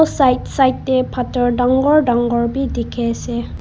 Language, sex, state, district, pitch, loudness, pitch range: Nagamese, female, Nagaland, Kohima, 255 Hz, -17 LUFS, 240-265 Hz